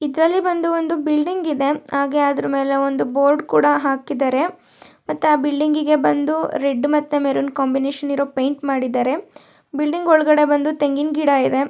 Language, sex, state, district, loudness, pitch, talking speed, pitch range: Kannada, male, Karnataka, Shimoga, -18 LUFS, 290 Hz, 155 wpm, 275-305 Hz